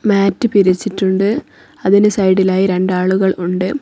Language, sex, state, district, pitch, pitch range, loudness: Malayalam, female, Kerala, Kozhikode, 190 Hz, 185-205 Hz, -14 LUFS